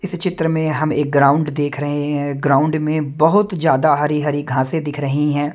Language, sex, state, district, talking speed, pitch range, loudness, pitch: Hindi, male, Haryana, Jhajjar, 205 wpm, 145-155 Hz, -17 LUFS, 150 Hz